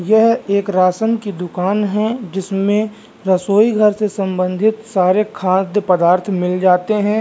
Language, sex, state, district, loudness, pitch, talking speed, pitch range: Hindi, male, Bihar, Vaishali, -16 LUFS, 200 Hz, 140 wpm, 185-215 Hz